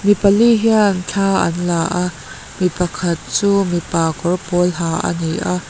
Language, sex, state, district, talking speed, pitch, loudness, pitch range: Mizo, female, Mizoram, Aizawl, 180 wpm, 180 Hz, -17 LUFS, 170-195 Hz